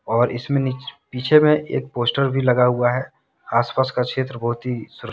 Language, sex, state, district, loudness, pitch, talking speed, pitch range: Hindi, male, Jharkhand, Deoghar, -20 LUFS, 125 Hz, 200 wpm, 120-135 Hz